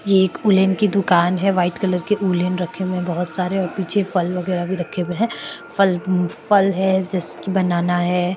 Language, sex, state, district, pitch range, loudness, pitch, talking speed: Hindi, female, Maharashtra, Chandrapur, 180-195 Hz, -19 LUFS, 185 Hz, 215 wpm